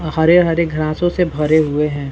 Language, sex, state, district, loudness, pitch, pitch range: Hindi, male, Bihar, Saran, -15 LUFS, 155 Hz, 150-170 Hz